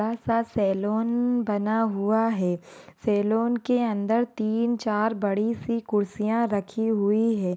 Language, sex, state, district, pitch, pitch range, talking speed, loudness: Hindi, female, Bihar, Jahanabad, 220 Hz, 205-230 Hz, 125 wpm, -25 LUFS